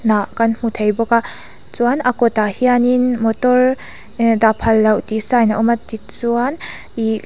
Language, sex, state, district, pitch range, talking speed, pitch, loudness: Mizo, female, Mizoram, Aizawl, 220-245 Hz, 180 wpm, 230 Hz, -16 LUFS